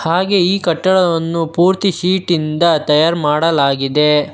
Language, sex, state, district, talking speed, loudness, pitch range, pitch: Kannada, male, Karnataka, Bangalore, 110 wpm, -14 LUFS, 150-180 Hz, 170 Hz